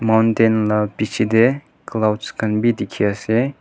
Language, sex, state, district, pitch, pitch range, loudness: Nagamese, male, Nagaland, Kohima, 110 Hz, 105-115 Hz, -18 LUFS